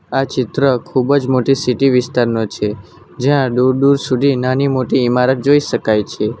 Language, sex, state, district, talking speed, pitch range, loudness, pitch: Gujarati, male, Gujarat, Valsad, 160 wpm, 120-135 Hz, -15 LUFS, 130 Hz